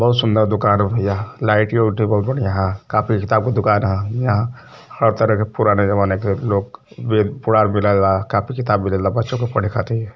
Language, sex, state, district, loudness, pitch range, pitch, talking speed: Hindi, male, Uttar Pradesh, Varanasi, -18 LUFS, 100-115 Hz, 105 Hz, 200 wpm